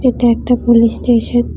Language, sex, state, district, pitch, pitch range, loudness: Bengali, female, Tripura, West Tripura, 240 Hz, 235-245 Hz, -13 LUFS